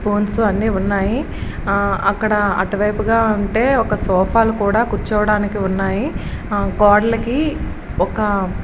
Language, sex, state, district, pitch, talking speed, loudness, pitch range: Telugu, female, Andhra Pradesh, Srikakulam, 205 Hz, 105 wpm, -17 LUFS, 200-220 Hz